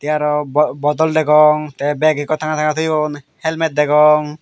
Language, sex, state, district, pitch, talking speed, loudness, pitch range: Chakma, male, Tripura, Dhalai, 150 Hz, 165 wpm, -15 LUFS, 150-155 Hz